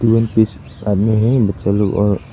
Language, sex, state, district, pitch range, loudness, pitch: Hindi, male, Arunachal Pradesh, Papum Pare, 100-115 Hz, -16 LUFS, 110 Hz